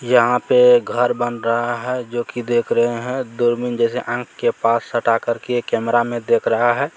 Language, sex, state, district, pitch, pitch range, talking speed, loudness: Maithili, male, Bihar, Supaul, 120 Hz, 120-125 Hz, 200 wpm, -18 LUFS